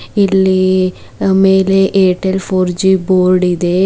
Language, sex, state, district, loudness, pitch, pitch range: Kannada, female, Karnataka, Bidar, -12 LUFS, 190 Hz, 185-190 Hz